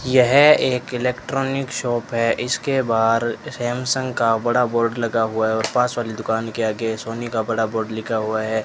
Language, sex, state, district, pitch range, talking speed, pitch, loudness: Hindi, male, Rajasthan, Bikaner, 110-125 Hz, 185 wpm, 115 Hz, -20 LUFS